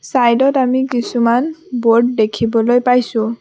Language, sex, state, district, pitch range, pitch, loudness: Assamese, female, Assam, Sonitpur, 230-255 Hz, 240 Hz, -15 LUFS